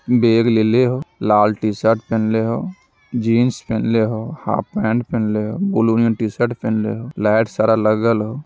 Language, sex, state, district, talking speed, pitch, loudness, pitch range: Magahi, male, Bihar, Jamui, 175 wpm, 115 Hz, -18 LUFS, 110-120 Hz